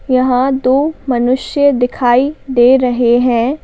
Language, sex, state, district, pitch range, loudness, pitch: Hindi, female, Madhya Pradesh, Bhopal, 245-270 Hz, -12 LUFS, 255 Hz